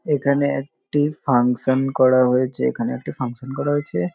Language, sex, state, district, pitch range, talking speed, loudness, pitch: Bengali, male, West Bengal, North 24 Parganas, 125-145 Hz, 160 wpm, -20 LUFS, 130 Hz